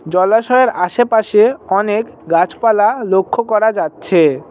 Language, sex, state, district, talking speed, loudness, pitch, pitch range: Bengali, male, West Bengal, Jalpaiguri, 95 wpm, -14 LUFS, 210 Hz, 185-225 Hz